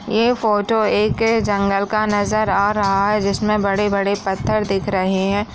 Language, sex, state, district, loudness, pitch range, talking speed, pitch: Hindi, female, Uttar Pradesh, Budaun, -18 LUFS, 200-215 Hz, 160 wpm, 205 Hz